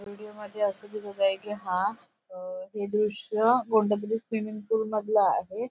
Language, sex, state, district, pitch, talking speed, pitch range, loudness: Marathi, female, Maharashtra, Sindhudurg, 215 Hz, 160 wpm, 205-225 Hz, -28 LUFS